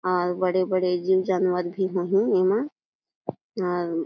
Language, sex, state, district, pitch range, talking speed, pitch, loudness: Chhattisgarhi, female, Chhattisgarh, Jashpur, 180-190 Hz, 135 wpm, 185 Hz, -24 LUFS